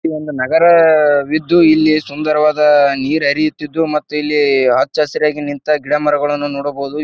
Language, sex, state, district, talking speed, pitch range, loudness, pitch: Kannada, male, Karnataka, Bijapur, 120 wpm, 145-155 Hz, -14 LUFS, 150 Hz